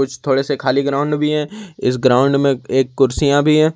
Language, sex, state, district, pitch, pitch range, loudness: Hindi, male, Jharkhand, Ranchi, 140 Hz, 135-150 Hz, -16 LUFS